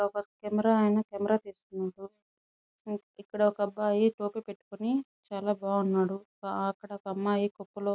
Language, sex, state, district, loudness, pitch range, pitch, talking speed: Telugu, female, Andhra Pradesh, Chittoor, -31 LUFS, 200-210 Hz, 205 Hz, 130 wpm